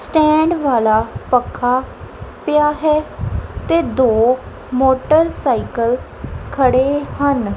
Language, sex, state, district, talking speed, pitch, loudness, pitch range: Punjabi, female, Punjab, Kapurthala, 80 wpm, 265 Hz, -16 LUFS, 245-305 Hz